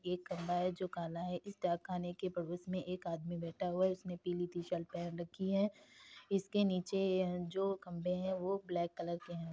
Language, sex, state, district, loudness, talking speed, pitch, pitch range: Hindi, female, Uttar Pradesh, Varanasi, -39 LUFS, 210 wpm, 180 Hz, 175-190 Hz